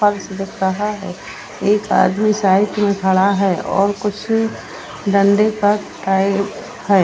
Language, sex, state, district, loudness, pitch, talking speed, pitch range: Hindi, female, Bihar, Gopalganj, -17 LUFS, 200 Hz, 110 wpm, 195-210 Hz